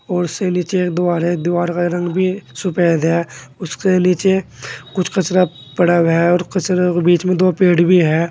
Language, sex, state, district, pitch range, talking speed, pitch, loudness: Hindi, male, Uttar Pradesh, Saharanpur, 170-185 Hz, 200 wpm, 175 Hz, -16 LUFS